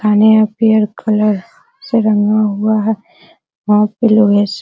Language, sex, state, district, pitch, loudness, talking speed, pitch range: Hindi, female, Bihar, Araria, 215 Hz, -13 LUFS, 170 wpm, 210-220 Hz